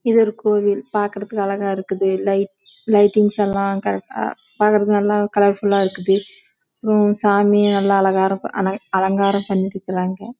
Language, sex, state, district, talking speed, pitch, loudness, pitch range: Tamil, female, Karnataka, Chamarajanagar, 80 wpm, 200 Hz, -18 LUFS, 195-210 Hz